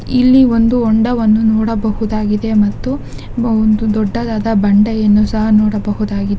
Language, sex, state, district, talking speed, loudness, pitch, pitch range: Kannada, female, Karnataka, Dakshina Kannada, 105 wpm, -13 LUFS, 220 Hz, 210-230 Hz